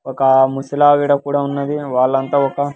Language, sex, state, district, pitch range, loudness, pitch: Telugu, male, Andhra Pradesh, Sri Satya Sai, 135-145 Hz, -15 LUFS, 140 Hz